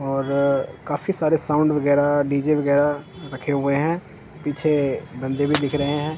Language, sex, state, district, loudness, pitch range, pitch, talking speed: Hindi, male, Punjab, Kapurthala, -21 LUFS, 140-150 Hz, 145 Hz, 155 wpm